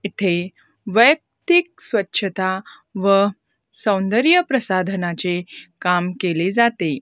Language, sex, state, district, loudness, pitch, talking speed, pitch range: Marathi, female, Maharashtra, Gondia, -19 LUFS, 195 Hz, 75 wpm, 180-225 Hz